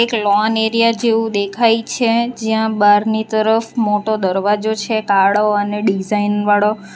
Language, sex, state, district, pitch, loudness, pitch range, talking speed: Gujarati, female, Gujarat, Valsad, 215 Hz, -15 LUFS, 205-225 Hz, 140 wpm